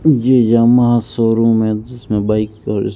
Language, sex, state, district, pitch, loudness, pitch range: Hindi, male, Rajasthan, Bikaner, 115 Hz, -14 LUFS, 105-120 Hz